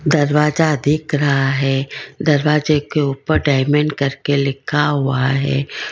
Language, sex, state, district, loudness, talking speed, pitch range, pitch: Hindi, female, Karnataka, Bangalore, -17 LUFS, 120 wpm, 135-150 Hz, 145 Hz